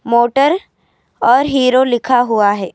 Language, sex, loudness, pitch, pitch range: Urdu, female, -13 LUFS, 250 Hz, 235-265 Hz